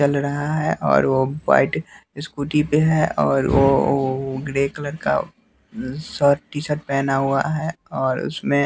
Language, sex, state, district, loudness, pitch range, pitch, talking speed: Hindi, male, Bihar, West Champaran, -20 LUFS, 135-150 Hz, 140 Hz, 150 wpm